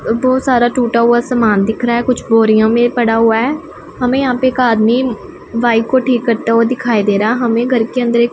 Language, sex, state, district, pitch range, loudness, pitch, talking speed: Hindi, female, Punjab, Pathankot, 225-250 Hz, -13 LUFS, 240 Hz, 230 wpm